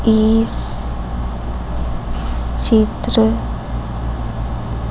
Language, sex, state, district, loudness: Hindi, female, Chhattisgarh, Raipur, -19 LUFS